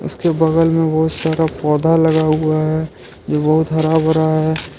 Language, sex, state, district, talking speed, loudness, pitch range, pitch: Hindi, male, Jharkhand, Ranchi, 175 wpm, -16 LUFS, 155-160 Hz, 160 Hz